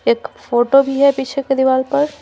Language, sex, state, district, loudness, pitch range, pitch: Hindi, female, Bihar, Patna, -15 LUFS, 260-280 Hz, 275 Hz